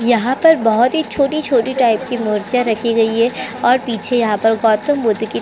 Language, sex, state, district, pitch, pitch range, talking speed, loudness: Hindi, female, Chhattisgarh, Korba, 235 Hz, 225-255 Hz, 210 wpm, -15 LUFS